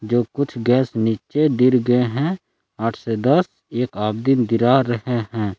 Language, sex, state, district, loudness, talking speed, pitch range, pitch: Hindi, male, Jharkhand, Palamu, -19 LUFS, 160 wpm, 115-135 Hz, 120 Hz